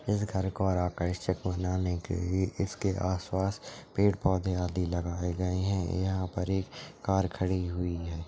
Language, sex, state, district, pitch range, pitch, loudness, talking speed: Hindi, male, Chhattisgarh, Rajnandgaon, 90-95 Hz, 95 Hz, -31 LUFS, 160 wpm